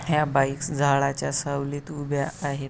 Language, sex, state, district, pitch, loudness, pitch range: Marathi, male, Maharashtra, Pune, 140 Hz, -25 LUFS, 140-145 Hz